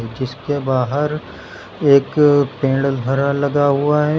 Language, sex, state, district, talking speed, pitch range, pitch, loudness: Hindi, male, Uttar Pradesh, Lucknow, 130 wpm, 135-145 Hz, 140 Hz, -17 LUFS